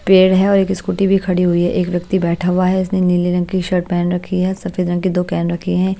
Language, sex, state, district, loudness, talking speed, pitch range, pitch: Hindi, female, Haryana, Jhajjar, -16 LUFS, 290 wpm, 175-190 Hz, 185 Hz